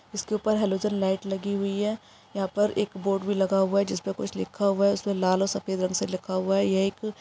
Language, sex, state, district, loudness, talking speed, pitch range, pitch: Hindi, female, Chhattisgarh, Raigarh, -26 LUFS, 250 wpm, 190-205 Hz, 195 Hz